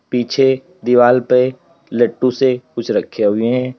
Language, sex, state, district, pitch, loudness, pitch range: Hindi, male, Uttar Pradesh, Lalitpur, 125 Hz, -15 LUFS, 120-130 Hz